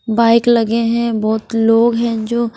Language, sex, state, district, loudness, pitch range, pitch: Hindi, female, Haryana, Charkhi Dadri, -14 LUFS, 225-235 Hz, 230 Hz